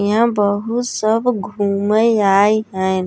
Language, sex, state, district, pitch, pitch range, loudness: Bhojpuri, female, Uttar Pradesh, Gorakhpur, 210 Hz, 200-225 Hz, -16 LUFS